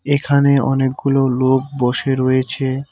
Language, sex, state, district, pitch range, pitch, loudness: Bengali, male, West Bengal, Cooch Behar, 130-140 Hz, 135 Hz, -16 LUFS